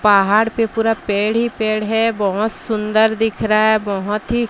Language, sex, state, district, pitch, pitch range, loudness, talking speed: Hindi, female, Odisha, Sambalpur, 220 Hz, 210-225 Hz, -17 LUFS, 185 wpm